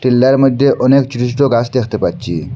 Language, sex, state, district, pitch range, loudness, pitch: Bengali, male, Assam, Hailakandi, 125-135 Hz, -13 LUFS, 130 Hz